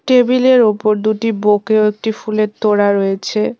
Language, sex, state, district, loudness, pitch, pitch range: Bengali, female, West Bengal, Cooch Behar, -14 LUFS, 215 Hz, 210-225 Hz